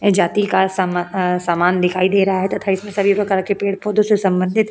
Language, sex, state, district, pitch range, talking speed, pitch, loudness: Hindi, female, Uttar Pradesh, Hamirpur, 185-200 Hz, 255 wpm, 195 Hz, -17 LUFS